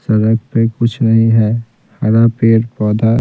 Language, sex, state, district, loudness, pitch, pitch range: Hindi, male, Bihar, Patna, -13 LUFS, 115 Hz, 110-115 Hz